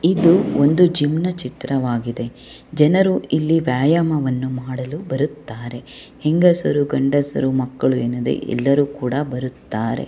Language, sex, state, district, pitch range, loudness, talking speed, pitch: Kannada, female, Karnataka, Chamarajanagar, 125-155 Hz, -19 LUFS, 100 wpm, 140 Hz